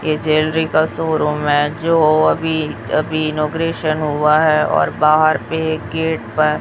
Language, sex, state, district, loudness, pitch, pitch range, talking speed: Hindi, female, Chhattisgarh, Raipur, -16 LUFS, 155 Hz, 150-160 Hz, 155 wpm